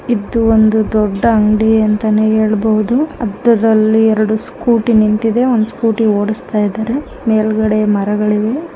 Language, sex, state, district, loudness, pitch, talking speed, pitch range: Kannada, female, Karnataka, Mysore, -13 LUFS, 220 Hz, 110 wpm, 215-230 Hz